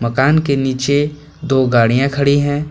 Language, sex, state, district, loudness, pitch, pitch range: Hindi, male, Jharkhand, Palamu, -15 LUFS, 140 Hz, 130-145 Hz